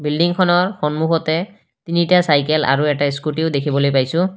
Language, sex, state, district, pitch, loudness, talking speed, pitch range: Assamese, male, Assam, Kamrup Metropolitan, 155 Hz, -17 LUFS, 125 wpm, 145-175 Hz